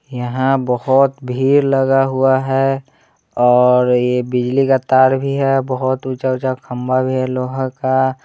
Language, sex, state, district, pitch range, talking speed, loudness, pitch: Hindi, male, Bihar, Muzaffarpur, 125-135 Hz, 155 wpm, -16 LUFS, 130 Hz